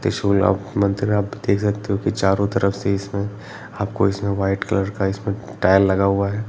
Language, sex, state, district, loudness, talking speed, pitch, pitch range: Hindi, male, Jharkhand, Jamtara, -20 LUFS, 215 wpm, 100 Hz, 95-105 Hz